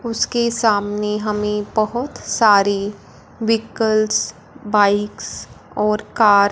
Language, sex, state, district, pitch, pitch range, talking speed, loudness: Hindi, female, Punjab, Fazilka, 210 Hz, 210-225 Hz, 90 wpm, -18 LUFS